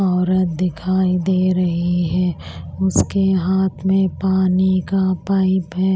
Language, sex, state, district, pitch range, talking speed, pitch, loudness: Hindi, female, Maharashtra, Washim, 175-190 Hz, 120 wpm, 185 Hz, -18 LUFS